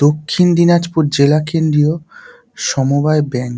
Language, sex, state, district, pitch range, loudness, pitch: Bengali, male, West Bengal, Dakshin Dinajpur, 145-165 Hz, -14 LUFS, 150 Hz